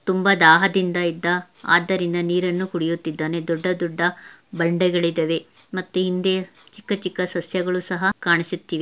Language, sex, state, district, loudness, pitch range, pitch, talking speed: Kannada, female, Karnataka, Mysore, -21 LUFS, 170-185 Hz, 180 Hz, 110 wpm